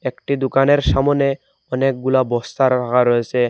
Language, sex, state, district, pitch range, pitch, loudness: Bengali, male, Assam, Hailakandi, 125-135 Hz, 130 Hz, -17 LUFS